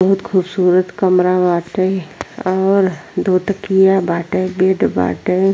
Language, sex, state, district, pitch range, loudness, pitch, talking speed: Bhojpuri, female, Uttar Pradesh, Ghazipur, 180-190 Hz, -15 LUFS, 185 Hz, 110 wpm